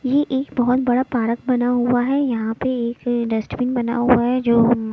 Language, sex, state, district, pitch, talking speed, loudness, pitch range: Hindi, female, Chhattisgarh, Raipur, 245 Hz, 195 wpm, -19 LUFS, 235-255 Hz